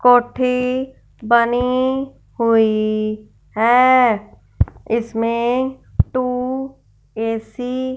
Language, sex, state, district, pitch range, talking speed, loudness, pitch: Hindi, female, Punjab, Fazilka, 225-255 Hz, 60 wpm, -18 LUFS, 245 Hz